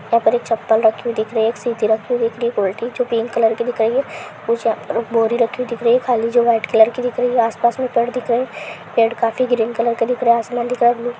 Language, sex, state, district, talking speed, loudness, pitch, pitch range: Hindi, female, Bihar, Saharsa, 345 wpm, -18 LUFS, 235 Hz, 230-245 Hz